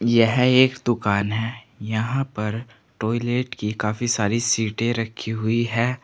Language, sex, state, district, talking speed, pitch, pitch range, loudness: Hindi, male, Uttar Pradesh, Saharanpur, 140 wpm, 115 Hz, 110-120 Hz, -22 LUFS